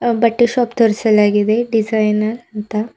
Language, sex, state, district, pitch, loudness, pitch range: Kannada, female, Karnataka, Bidar, 225 Hz, -15 LUFS, 210-235 Hz